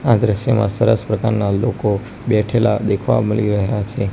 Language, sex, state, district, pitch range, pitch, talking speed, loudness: Gujarati, male, Gujarat, Gandhinagar, 100-115 Hz, 105 Hz, 145 wpm, -17 LUFS